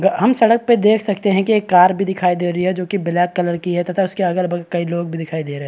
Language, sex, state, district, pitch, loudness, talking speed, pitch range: Hindi, male, Bihar, Araria, 180 Hz, -17 LUFS, 315 wpm, 175-200 Hz